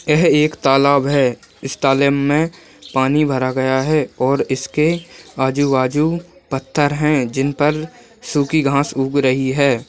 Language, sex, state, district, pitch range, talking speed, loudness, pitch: Hindi, male, Chhattisgarh, Raigarh, 135-150 Hz, 140 wpm, -17 LUFS, 140 Hz